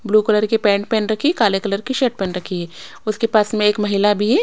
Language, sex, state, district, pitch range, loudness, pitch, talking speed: Hindi, female, Odisha, Sambalpur, 200-225 Hz, -18 LUFS, 210 Hz, 270 wpm